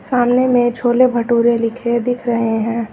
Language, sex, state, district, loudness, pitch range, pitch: Hindi, female, Uttar Pradesh, Lucknow, -15 LUFS, 235-245 Hz, 240 Hz